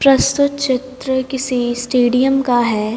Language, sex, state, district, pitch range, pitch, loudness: Hindi, female, Haryana, Jhajjar, 245-270 Hz, 260 Hz, -16 LUFS